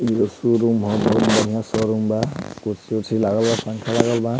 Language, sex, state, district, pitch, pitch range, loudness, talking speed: Bhojpuri, male, Bihar, Muzaffarpur, 110 Hz, 110-115 Hz, -20 LUFS, 190 wpm